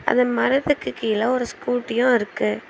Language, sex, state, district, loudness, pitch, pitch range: Tamil, female, Tamil Nadu, Chennai, -21 LUFS, 245 Hz, 220-250 Hz